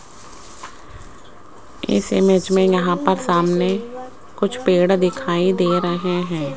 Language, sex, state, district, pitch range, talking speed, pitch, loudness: Hindi, female, Rajasthan, Jaipur, 175-190 Hz, 110 wpm, 180 Hz, -18 LUFS